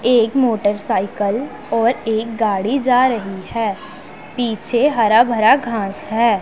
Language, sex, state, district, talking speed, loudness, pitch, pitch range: Hindi, female, Punjab, Pathankot, 120 wpm, -17 LUFS, 225 Hz, 205-240 Hz